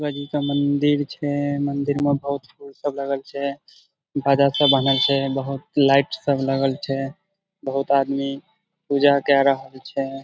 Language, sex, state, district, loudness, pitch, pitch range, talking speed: Maithili, male, Bihar, Supaul, -21 LUFS, 140 Hz, 135-145 Hz, 140 wpm